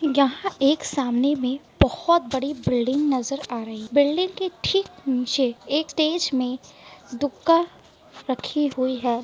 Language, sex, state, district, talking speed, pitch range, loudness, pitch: Hindi, female, Bihar, Kishanganj, 135 wpm, 255-310 Hz, -23 LUFS, 275 Hz